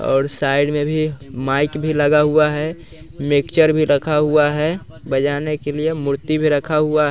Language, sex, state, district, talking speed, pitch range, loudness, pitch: Hindi, male, Bihar, West Champaran, 175 wpm, 145-155 Hz, -18 LUFS, 150 Hz